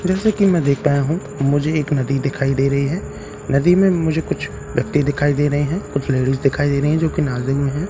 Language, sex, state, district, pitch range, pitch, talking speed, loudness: Hindi, male, Bihar, Katihar, 140-160 Hz, 145 Hz, 245 wpm, -18 LUFS